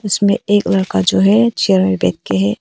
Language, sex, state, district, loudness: Hindi, female, Arunachal Pradesh, Papum Pare, -14 LUFS